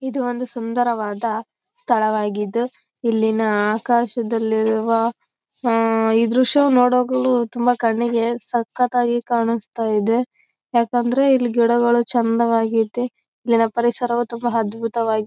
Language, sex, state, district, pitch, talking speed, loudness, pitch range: Kannada, female, Karnataka, Raichur, 235 Hz, 30 wpm, -19 LUFS, 225-245 Hz